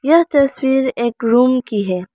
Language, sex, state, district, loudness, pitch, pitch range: Hindi, female, Arunachal Pradesh, Lower Dibang Valley, -15 LUFS, 255 Hz, 230-270 Hz